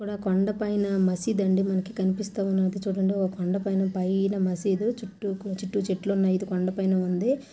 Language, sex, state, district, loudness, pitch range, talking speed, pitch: Telugu, female, Andhra Pradesh, Krishna, -26 LUFS, 190-200 Hz, 150 wpm, 195 Hz